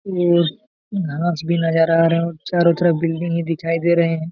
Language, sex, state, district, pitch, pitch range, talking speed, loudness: Hindi, male, Jharkhand, Jamtara, 170 Hz, 165-170 Hz, 220 wpm, -18 LUFS